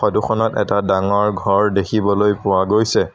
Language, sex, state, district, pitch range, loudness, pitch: Assamese, male, Assam, Sonitpur, 100-105 Hz, -17 LUFS, 100 Hz